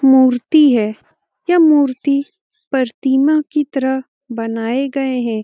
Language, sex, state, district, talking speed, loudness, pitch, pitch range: Hindi, female, Bihar, Jamui, 110 wpm, -15 LUFS, 265 Hz, 250-290 Hz